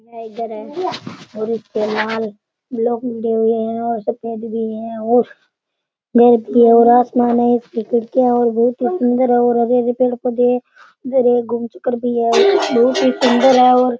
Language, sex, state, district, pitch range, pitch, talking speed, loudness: Rajasthani, male, Rajasthan, Churu, 225-245 Hz, 235 Hz, 150 wpm, -16 LUFS